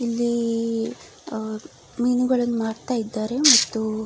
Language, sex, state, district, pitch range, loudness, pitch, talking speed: Kannada, female, Karnataka, Dakshina Kannada, 220-245 Hz, -22 LUFS, 230 Hz, 120 wpm